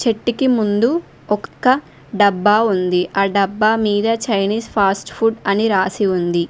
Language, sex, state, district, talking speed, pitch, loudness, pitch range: Telugu, female, Telangana, Mahabubabad, 130 wpm, 210 Hz, -17 LUFS, 195-225 Hz